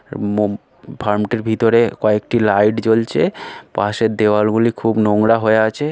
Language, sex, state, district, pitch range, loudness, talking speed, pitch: Bengali, male, West Bengal, Malda, 105-115 Hz, -16 LUFS, 130 wpm, 110 Hz